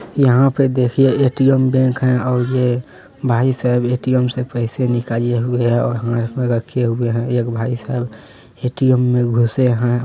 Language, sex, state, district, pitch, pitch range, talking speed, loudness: Hindi, male, Bihar, Kishanganj, 125 Hz, 120-130 Hz, 160 wpm, -17 LUFS